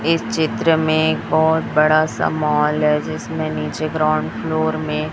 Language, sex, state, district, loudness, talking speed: Hindi, male, Chhattisgarh, Raipur, -18 LUFS, 150 wpm